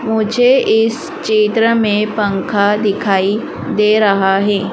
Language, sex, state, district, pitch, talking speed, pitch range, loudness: Hindi, female, Madhya Pradesh, Dhar, 215 Hz, 115 wpm, 205-225 Hz, -14 LUFS